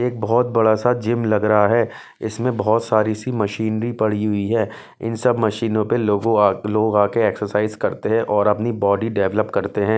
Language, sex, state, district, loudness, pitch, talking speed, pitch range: Hindi, male, Bihar, West Champaran, -19 LUFS, 110 Hz, 195 wpm, 105-115 Hz